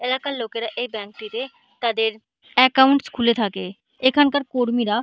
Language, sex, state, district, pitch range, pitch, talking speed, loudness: Bengali, female, West Bengal, Malda, 220-260 Hz, 240 Hz, 130 wpm, -21 LUFS